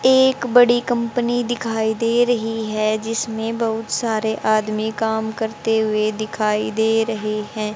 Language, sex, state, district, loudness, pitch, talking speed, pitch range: Hindi, female, Haryana, Charkhi Dadri, -20 LUFS, 220 Hz, 140 wpm, 215-235 Hz